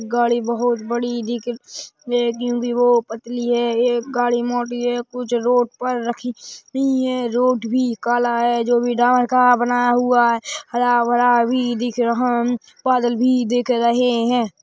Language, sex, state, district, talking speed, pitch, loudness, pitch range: Hindi, male, Chhattisgarh, Rajnandgaon, 160 wpm, 240 Hz, -19 LUFS, 240-245 Hz